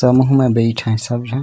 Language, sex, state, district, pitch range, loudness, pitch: Chhattisgarhi, male, Chhattisgarh, Raigarh, 115-130 Hz, -15 LUFS, 120 Hz